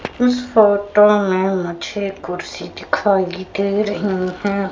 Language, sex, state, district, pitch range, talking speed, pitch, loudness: Hindi, female, Madhya Pradesh, Katni, 185-210 Hz, 115 wpm, 200 Hz, -18 LUFS